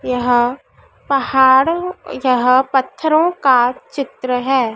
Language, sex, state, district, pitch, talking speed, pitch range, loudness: Hindi, female, Madhya Pradesh, Dhar, 265 Hz, 90 wpm, 250-280 Hz, -15 LUFS